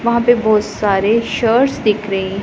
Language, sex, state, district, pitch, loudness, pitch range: Hindi, female, Punjab, Pathankot, 215 Hz, -15 LUFS, 205-235 Hz